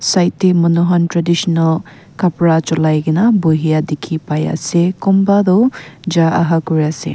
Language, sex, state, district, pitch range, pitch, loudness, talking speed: Nagamese, female, Nagaland, Kohima, 160-180 Hz, 170 Hz, -14 LUFS, 145 wpm